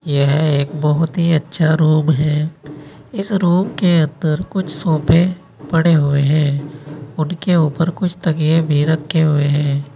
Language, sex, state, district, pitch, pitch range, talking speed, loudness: Hindi, male, Uttar Pradesh, Saharanpur, 155 Hz, 150-170 Hz, 145 wpm, -16 LUFS